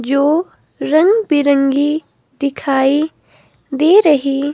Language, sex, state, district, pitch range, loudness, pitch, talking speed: Hindi, female, Himachal Pradesh, Shimla, 275-315 Hz, -14 LUFS, 290 Hz, 80 wpm